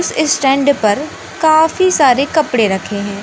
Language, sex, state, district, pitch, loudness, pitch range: Hindi, male, Madhya Pradesh, Katni, 285 Hz, -13 LUFS, 215-315 Hz